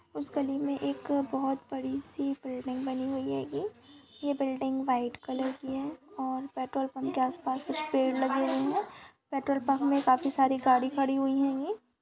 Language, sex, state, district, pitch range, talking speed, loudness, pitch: Hindi, female, West Bengal, Kolkata, 260-280 Hz, 185 wpm, -31 LUFS, 270 Hz